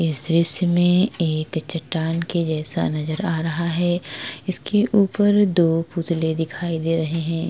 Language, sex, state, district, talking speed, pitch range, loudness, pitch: Hindi, female, Maharashtra, Chandrapur, 150 wpm, 160-175 Hz, -20 LUFS, 165 Hz